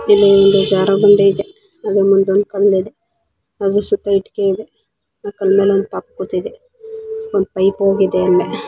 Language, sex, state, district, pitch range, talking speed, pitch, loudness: Kannada, female, Karnataka, Mysore, 195-215 Hz, 150 wpm, 200 Hz, -14 LUFS